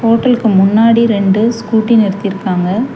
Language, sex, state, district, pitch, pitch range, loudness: Tamil, female, Tamil Nadu, Chennai, 220 Hz, 200-230 Hz, -11 LUFS